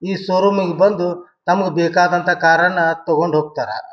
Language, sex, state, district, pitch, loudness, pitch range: Kannada, male, Karnataka, Bijapur, 175 Hz, -16 LUFS, 170-185 Hz